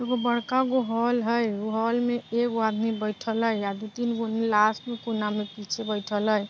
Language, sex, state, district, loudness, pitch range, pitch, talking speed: Bajjika, female, Bihar, Vaishali, -26 LUFS, 215-235 Hz, 225 Hz, 205 wpm